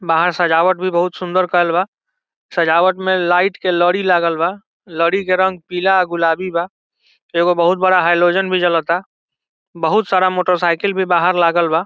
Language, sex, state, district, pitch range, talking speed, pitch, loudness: Bhojpuri, male, Bihar, Saran, 170-185 Hz, 195 wpm, 180 Hz, -15 LUFS